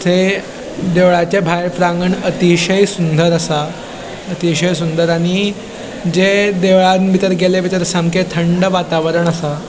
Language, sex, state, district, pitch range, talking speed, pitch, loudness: Konkani, male, Goa, North and South Goa, 170-190 Hz, 120 wpm, 180 Hz, -14 LUFS